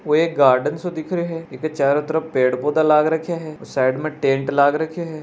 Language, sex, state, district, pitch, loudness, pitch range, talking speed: Hindi, female, Rajasthan, Nagaur, 155 Hz, -19 LUFS, 140-160 Hz, 230 wpm